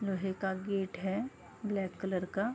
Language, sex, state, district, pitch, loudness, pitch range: Hindi, female, Uttar Pradesh, Gorakhpur, 195 Hz, -36 LUFS, 190-200 Hz